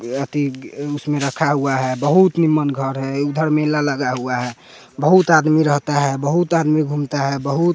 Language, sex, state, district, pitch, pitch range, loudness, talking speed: Hindi, male, Bihar, West Champaran, 145 Hz, 140-155 Hz, -18 LUFS, 170 wpm